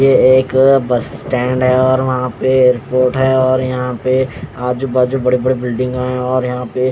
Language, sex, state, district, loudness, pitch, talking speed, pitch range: Hindi, male, Odisha, Khordha, -14 LUFS, 130 Hz, 165 wpm, 125-130 Hz